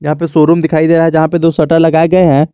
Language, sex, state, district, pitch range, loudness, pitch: Hindi, male, Jharkhand, Garhwa, 155-165 Hz, -10 LUFS, 165 Hz